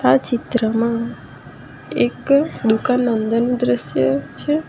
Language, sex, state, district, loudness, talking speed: Gujarati, female, Gujarat, Valsad, -19 LUFS, 100 wpm